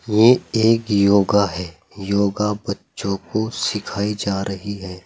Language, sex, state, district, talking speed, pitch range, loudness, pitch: Hindi, male, Uttar Pradesh, Saharanpur, 130 wpm, 100-105 Hz, -20 LUFS, 100 Hz